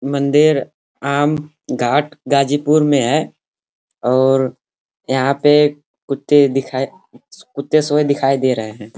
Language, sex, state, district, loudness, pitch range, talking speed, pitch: Hindi, male, Uttar Pradesh, Ghazipur, -16 LUFS, 135-150 Hz, 115 wpm, 140 Hz